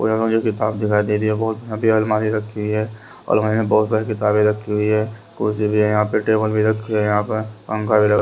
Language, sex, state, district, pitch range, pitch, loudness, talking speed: Hindi, male, Haryana, Rohtak, 105-110 Hz, 110 Hz, -19 LUFS, 250 wpm